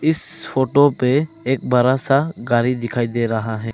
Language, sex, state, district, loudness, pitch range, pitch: Hindi, male, Arunachal Pradesh, Lower Dibang Valley, -18 LUFS, 120-140 Hz, 125 Hz